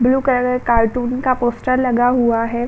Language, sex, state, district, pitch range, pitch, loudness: Hindi, female, Uttar Pradesh, Budaun, 240-255 Hz, 245 Hz, -17 LUFS